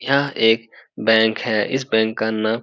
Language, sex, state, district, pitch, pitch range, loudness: Hindi, male, Bihar, Supaul, 110 Hz, 110-120 Hz, -19 LUFS